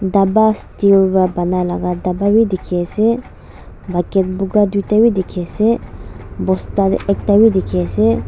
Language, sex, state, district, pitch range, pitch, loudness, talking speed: Nagamese, female, Nagaland, Dimapur, 180-210 Hz, 195 Hz, -15 LUFS, 145 wpm